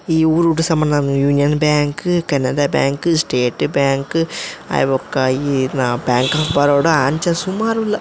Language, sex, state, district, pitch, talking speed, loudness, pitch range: Tulu, male, Karnataka, Dakshina Kannada, 145 Hz, 125 wpm, -16 LUFS, 135-165 Hz